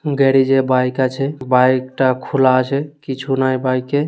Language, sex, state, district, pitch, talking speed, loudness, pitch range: Bengali, male, West Bengal, Dakshin Dinajpur, 130 Hz, 145 wpm, -16 LUFS, 130-135 Hz